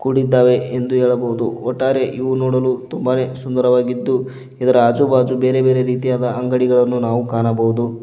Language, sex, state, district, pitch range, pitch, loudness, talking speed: Kannada, male, Karnataka, Koppal, 125-130 Hz, 125 Hz, -16 LUFS, 125 wpm